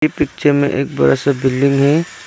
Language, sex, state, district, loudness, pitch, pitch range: Hindi, male, Arunachal Pradesh, Lower Dibang Valley, -15 LUFS, 140 Hz, 135-145 Hz